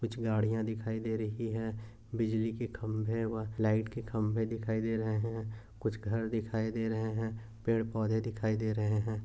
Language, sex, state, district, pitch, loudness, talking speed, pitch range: Hindi, male, Maharashtra, Dhule, 110 Hz, -34 LUFS, 190 wpm, 110-115 Hz